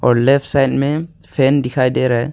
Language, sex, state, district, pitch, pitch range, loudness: Hindi, male, Arunachal Pradesh, Longding, 135 Hz, 125-145 Hz, -16 LUFS